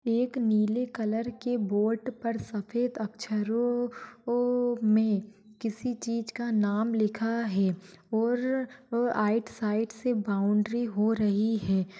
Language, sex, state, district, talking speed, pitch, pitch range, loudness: Hindi, female, Maharashtra, Nagpur, 120 wpm, 225 Hz, 210-240 Hz, -29 LUFS